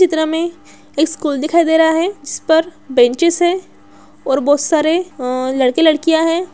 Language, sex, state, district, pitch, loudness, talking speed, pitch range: Hindi, female, Bihar, Araria, 320 Hz, -15 LUFS, 165 wpm, 290-340 Hz